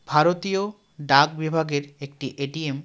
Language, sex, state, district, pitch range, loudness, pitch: Bengali, male, West Bengal, Darjeeling, 140-160 Hz, -23 LUFS, 150 Hz